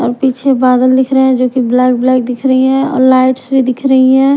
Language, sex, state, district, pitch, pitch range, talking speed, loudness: Hindi, female, Punjab, Kapurthala, 260 Hz, 255-265 Hz, 245 wpm, -10 LUFS